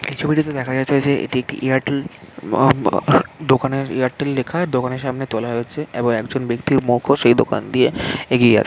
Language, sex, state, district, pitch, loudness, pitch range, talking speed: Bengali, male, West Bengal, Jhargram, 130 Hz, -19 LUFS, 125-140 Hz, 180 wpm